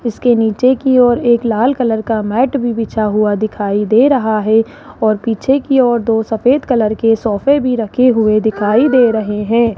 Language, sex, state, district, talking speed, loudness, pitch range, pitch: Hindi, female, Rajasthan, Jaipur, 195 wpm, -13 LUFS, 215-255 Hz, 230 Hz